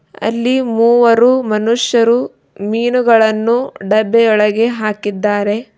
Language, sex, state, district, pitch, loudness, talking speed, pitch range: Kannada, female, Karnataka, Bidar, 230 Hz, -13 LUFS, 75 wpm, 215-240 Hz